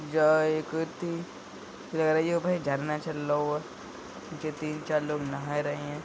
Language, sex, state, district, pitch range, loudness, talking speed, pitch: Hindi, male, Uttar Pradesh, Budaun, 145-160 Hz, -29 LUFS, 140 wpm, 150 Hz